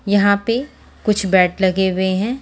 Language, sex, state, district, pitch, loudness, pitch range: Hindi, female, Haryana, Jhajjar, 200 Hz, -17 LUFS, 190-210 Hz